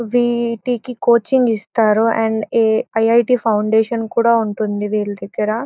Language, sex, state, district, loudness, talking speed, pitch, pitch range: Telugu, female, Andhra Pradesh, Anantapur, -16 LUFS, 135 wpm, 225 Hz, 220-235 Hz